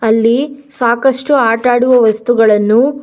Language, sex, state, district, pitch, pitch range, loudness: Kannada, female, Karnataka, Bangalore, 240 Hz, 225-270 Hz, -11 LUFS